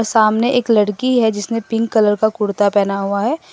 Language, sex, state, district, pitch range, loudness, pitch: Hindi, female, Assam, Sonitpur, 205-230 Hz, -16 LUFS, 220 Hz